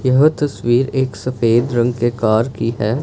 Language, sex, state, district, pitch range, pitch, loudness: Hindi, male, Punjab, Fazilka, 115-130 Hz, 120 Hz, -17 LUFS